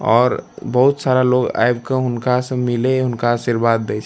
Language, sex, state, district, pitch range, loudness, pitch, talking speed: Maithili, male, Bihar, Darbhanga, 120-130 Hz, -17 LUFS, 125 Hz, 190 wpm